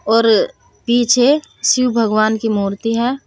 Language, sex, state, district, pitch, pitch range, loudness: Hindi, female, Uttar Pradesh, Saharanpur, 235 Hz, 220-255 Hz, -15 LUFS